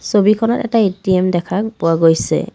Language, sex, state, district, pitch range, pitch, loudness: Assamese, female, Assam, Kamrup Metropolitan, 165-210 Hz, 185 Hz, -15 LUFS